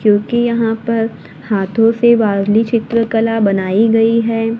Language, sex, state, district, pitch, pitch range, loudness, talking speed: Hindi, female, Maharashtra, Gondia, 225 Hz, 215-230 Hz, -14 LUFS, 130 wpm